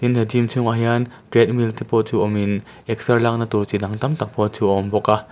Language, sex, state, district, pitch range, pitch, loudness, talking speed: Mizo, male, Mizoram, Aizawl, 105-120 Hz, 115 Hz, -19 LUFS, 260 wpm